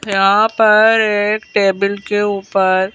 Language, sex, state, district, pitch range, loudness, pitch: Hindi, female, Madhya Pradesh, Bhopal, 195-215 Hz, -14 LUFS, 205 Hz